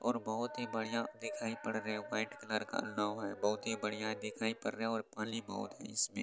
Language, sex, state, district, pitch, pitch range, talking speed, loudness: Hindi, male, Bihar, Supaul, 110 Hz, 105-115 Hz, 240 wpm, -39 LUFS